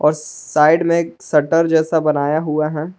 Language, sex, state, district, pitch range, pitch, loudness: Hindi, male, Jharkhand, Palamu, 150-165 Hz, 155 Hz, -16 LUFS